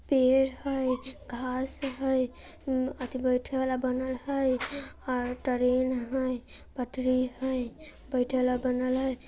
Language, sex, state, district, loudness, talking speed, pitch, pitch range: Maithili, female, Bihar, Samastipur, -30 LUFS, 115 wpm, 255 Hz, 255-265 Hz